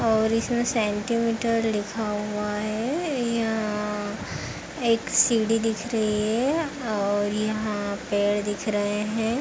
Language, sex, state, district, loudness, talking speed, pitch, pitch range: Hindi, female, Uttar Pradesh, Hamirpur, -25 LUFS, 115 wpm, 220 Hz, 210-230 Hz